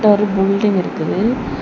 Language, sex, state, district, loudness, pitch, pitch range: Tamil, female, Tamil Nadu, Kanyakumari, -16 LUFS, 205 Hz, 195-215 Hz